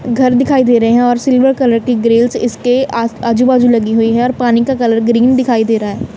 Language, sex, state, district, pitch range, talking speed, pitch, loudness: Hindi, female, Punjab, Kapurthala, 230-255 Hz, 235 wpm, 240 Hz, -12 LUFS